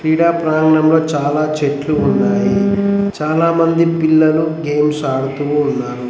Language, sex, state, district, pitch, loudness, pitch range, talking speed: Telugu, male, Telangana, Mahabubabad, 155 Hz, -15 LUFS, 145-165 Hz, 100 wpm